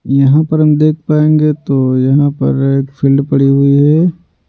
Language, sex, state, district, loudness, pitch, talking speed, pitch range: Hindi, male, Bihar, Patna, -11 LUFS, 140 Hz, 175 wpm, 135-155 Hz